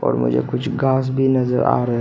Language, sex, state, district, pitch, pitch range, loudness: Hindi, male, Arunachal Pradesh, Papum Pare, 130 Hz, 120-130 Hz, -19 LUFS